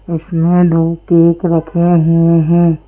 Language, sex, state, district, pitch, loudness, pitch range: Hindi, female, Madhya Pradesh, Bhopal, 170 Hz, -12 LUFS, 165-170 Hz